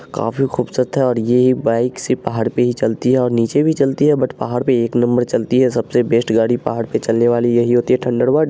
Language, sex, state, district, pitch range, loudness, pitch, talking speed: Angika, male, Bihar, Araria, 115-130 Hz, -16 LUFS, 120 Hz, 240 wpm